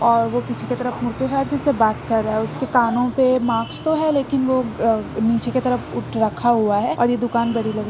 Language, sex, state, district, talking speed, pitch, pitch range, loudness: Hindi, female, Jharkhand, Jamtara, 260 wpm, 240 Hz, 230-255 Hz, -20 LUFS